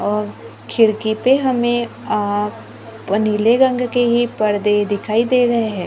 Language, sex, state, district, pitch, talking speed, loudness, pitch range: Hindi, female, Maharashtra, Gondia, 215 Hz, 155 wpm, -17 LUFS, 205-240 Hz